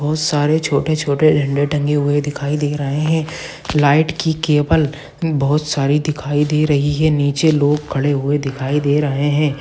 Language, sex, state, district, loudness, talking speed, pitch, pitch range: Hindi, male, Bihar, Purnia, -17 LUFS, 170 wpm, 145 Hz, 145-155 Hz